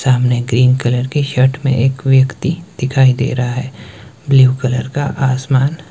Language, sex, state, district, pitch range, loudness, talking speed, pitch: Hindi, male, Himachal Pradesh, Shimla, 125-135 Hz, -14 LUFS, 160 wpm, 130 Hz